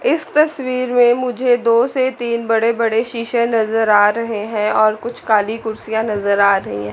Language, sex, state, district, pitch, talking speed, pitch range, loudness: Hindi, female, Chandigarh, Chandigarh, 230 Hz, 190 wpm, 215-245 Hz, -16 LUFS